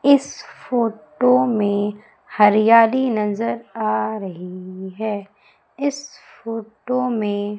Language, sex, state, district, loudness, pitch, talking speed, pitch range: Hindi, female, Madhya Pradesh, Umaria, -20 LUFS, 215 Hz, 85 wpm, 205-245 Hz